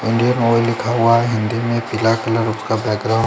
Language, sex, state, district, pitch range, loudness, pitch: Hindi, male, Chandigarh, Chandigarh, 110-115 Hz, -17 LUFS, 115 Hz